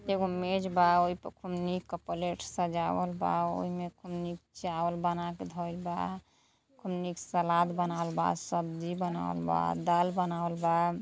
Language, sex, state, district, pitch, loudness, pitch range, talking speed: Hindi, female, Uttar Pradesh, Gorakhpur, 175 Hz, -32 LUFS, 170-180 Hz, 140 wpm